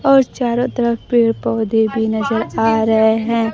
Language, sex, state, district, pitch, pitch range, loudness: Hindi, female, Bihar, Kaimur, 225 Hz, 220-240 Hz, -16 LUFS